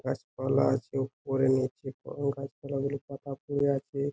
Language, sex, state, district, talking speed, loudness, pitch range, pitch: Bengali, male, West Bengal, Jhargram, 175 wpm, -31 LUFS, 135-140 Hz, 140 Hz